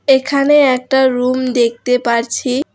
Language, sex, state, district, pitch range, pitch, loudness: Bengali, female, West Bengal, Alipurduar, 250-270 Hz, 255 Hz, -14 LUFS